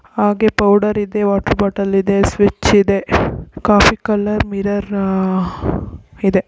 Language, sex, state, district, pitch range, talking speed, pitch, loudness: Kannada, female, Karnataka, Belgaum, 195-205 Hz, 120 wpm, 200 Hz, -15 LUFS